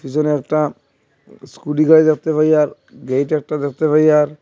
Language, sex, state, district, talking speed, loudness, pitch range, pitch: Bengali, male, Assam, Hailakandi, 165 wpm, -16 LUFS, 145-155 Hz, 150 Hz